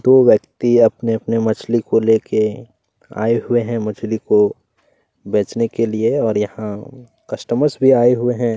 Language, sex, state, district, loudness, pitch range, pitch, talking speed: Hindi, male, Chhattisgarh, Kabirdham, -17 LUFS, 110-120 Hz, 115 Hz, 155 wpm